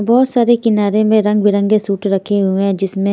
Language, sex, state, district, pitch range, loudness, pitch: Hindi, female, Haryana, Jhajjar, 200-215 Hz, -14 LUFS, 205 Hz